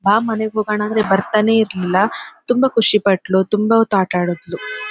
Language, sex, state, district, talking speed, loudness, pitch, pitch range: Kannada, female, Karnataka, Shimoga, 170 wpm, -17 LUFS, 210 Hz, 190-220 Hz